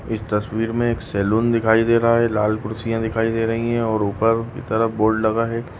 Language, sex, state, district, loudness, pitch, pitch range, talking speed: Hindi, female, Goa, North and South Goa, -20 LUFS, 115 Hz, 110-115 Hz, 225 wpm